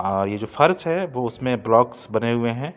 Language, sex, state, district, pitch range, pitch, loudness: Hindi, male, Jharkhand, Ranchi, 110-145 Hz, 120 Hz, -21 LUFS